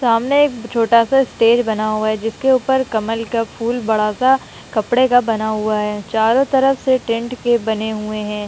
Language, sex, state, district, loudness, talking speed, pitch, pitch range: Hindi, female, Uttar Pradesh, Jalaun, -17 LUFS, 200 wpm, 230 Hz, 215-255 Hz